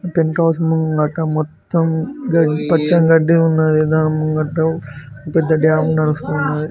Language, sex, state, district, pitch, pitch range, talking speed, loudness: Telugu, male, Telangana, Mahabubabad, 160 Hz, 155-165 Hz, 125 wpm, -16 LUFS